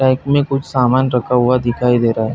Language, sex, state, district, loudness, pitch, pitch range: Hindi, male, Chhattisgarh, Bilaspur, -15 LUFS, 125 Hz, 120-130 Hz